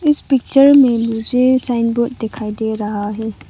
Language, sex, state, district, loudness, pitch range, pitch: Hindi, female, Arunachal Pradesh, Lower Dibang Valley, -15 LUFS, 220-260 Hz, 235 Hz